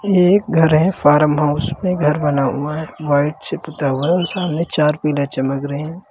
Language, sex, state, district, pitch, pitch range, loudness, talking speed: Hindi, male, Uttar Pradesh, Lalitpur, 150 Hz, 145-170 Hz, -17 LUFS, 195 wpm